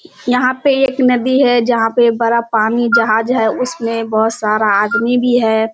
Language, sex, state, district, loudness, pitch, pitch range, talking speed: Hindi, female, Bihar, Kishanganj, -14 LUFS, 235 Hz, 225-250 Hz, 180 wpm